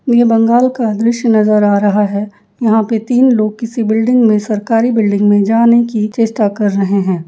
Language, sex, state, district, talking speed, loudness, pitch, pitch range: Hindi, female, Uttar Pradesh, Jyotiba Phule Nagar, 200 wpm, -12 LUFS, 220 Hz, 205-235 Hz